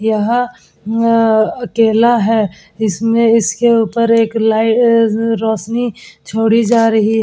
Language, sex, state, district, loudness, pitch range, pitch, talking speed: Hindi, female, Uttar Pradesh, Etah, -13 LUFS, 220-230 Hz, 225 Hz, 125 wpm